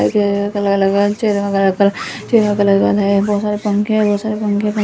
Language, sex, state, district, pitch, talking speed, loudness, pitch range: Hindi, female, Rajasthan, Jaipur, 205 Hz, 85 wpm, -15 LUFS, 200-210 Hz